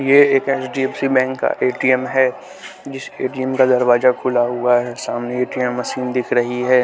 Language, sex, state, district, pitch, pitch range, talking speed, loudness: Hindi, male, Bihar, West Champaran, 130 Hz, 125-135 Hz, 175 wpm, -17 LUFS